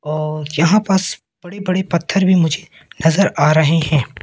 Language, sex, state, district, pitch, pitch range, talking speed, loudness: Hindi, male, Madhya Pradesh, Katni, 165 Hz, 155-185 Hz, 170 wpm, -16 LUFS